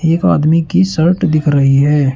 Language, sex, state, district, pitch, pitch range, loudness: Hindi, male, Uttar Pradesh, Shamli, 155 Hz, 145-170 Hz, -12 LUFS